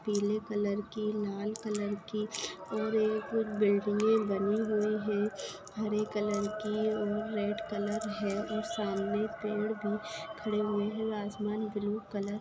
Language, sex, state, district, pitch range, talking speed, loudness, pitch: Hindi, female, Maharashtra, Aurangabad, 205-215 Hz, 140 wpm, -33 LUFS, 210 Hz